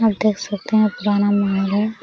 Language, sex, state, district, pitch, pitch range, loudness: Hindi, female, Jharkhand, Sahebganj, 205 Hz, 205-215 Hz, -19 LUFS